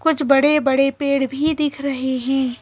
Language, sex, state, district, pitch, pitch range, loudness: Hindi, female, Madhya Pradesh, Bhopal, 275 Hz, 265-295 Hz, -18 LUFS